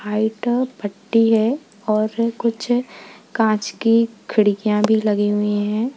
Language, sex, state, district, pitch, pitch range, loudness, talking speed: Hindi, female, Uttar Pradesh, Lalitpur, 220 Hz, 210-230 Hz, -19 LUFS, 120 wpm